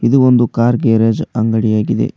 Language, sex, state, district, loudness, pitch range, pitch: Kannada, male, Karnataka, Koppal, -13 LUFS, 110-120 Hz, 115 Hz